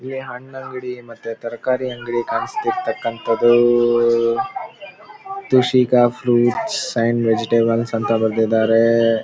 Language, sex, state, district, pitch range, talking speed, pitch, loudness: Kannada, male, Karnataka, Mysore, 115-130 Hz, 80 wpm, 120 Hz, -18 LUFS